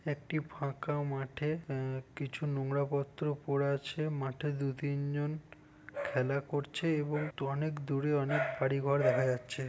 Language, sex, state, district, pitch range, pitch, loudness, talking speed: Bengali, male, West Bengal, Purulia, 135-150 Hz, 145 Hz, -35 LUFS, 135 wpm